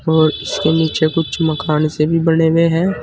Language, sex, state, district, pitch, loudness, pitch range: Hindi, male, Uttar Pradesh, Saharanpur, 160 Hz, -15 LUFS, 155-165 Hz